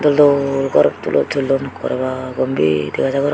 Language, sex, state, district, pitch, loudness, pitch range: Chakma, female, Tripura, Unakoti, 135 Hz, -17 LUFS, 130-140 Hz